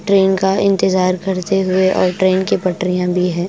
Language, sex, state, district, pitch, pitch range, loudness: Hindi, female, Bihar, West Champaran, 185 Hz, 185-190 Hz, -15 LUFS